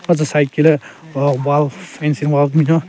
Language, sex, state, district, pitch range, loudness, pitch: Rengma, male, Nagaland, Kohima, 145-160 Hz, -16 LUFS, 150 Hz